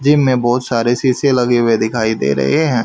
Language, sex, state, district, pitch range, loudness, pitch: Hindi, male, Haryana, Jhajjar, 115-130 Hz, -14 LUFS, 120 Hz